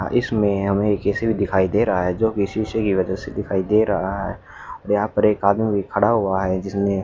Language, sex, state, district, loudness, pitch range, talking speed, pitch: Hindi, male, Haryana, Charkhi Dadri, -20 LUFS, 95-105 Hz, 245 wpm, 100 Hz